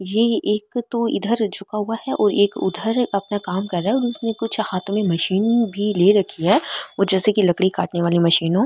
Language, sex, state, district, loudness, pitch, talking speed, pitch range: Marwari, female, Rajasthan, Nagaur, -19 LUFS, 205 Hz, 220 wpm, 190-225 Hz